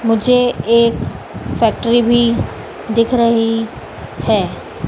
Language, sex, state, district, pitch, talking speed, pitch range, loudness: Hindi, female, Madhya Pradesh, Dhar, 235 Hz, 85 wpm, 230-240 Hz, -15 LUFS